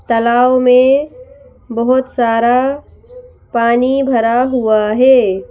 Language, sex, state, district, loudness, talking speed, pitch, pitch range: Hindi, female, Madhya Pradesh, Bhopal, -12 LUFS, 85 wpm, 250 Hz, 235-270 Hz